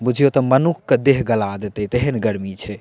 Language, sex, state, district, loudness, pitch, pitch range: Maithili, male, Bihar, Purnia, -18 LUFS, 120 Hz, 105-135 Hz